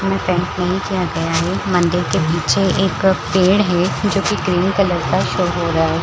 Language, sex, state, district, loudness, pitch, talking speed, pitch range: Hindi, female, Bihar, Madhepura, -17 LUFS, 180 Hz, 230 wpm, 170-190 Hz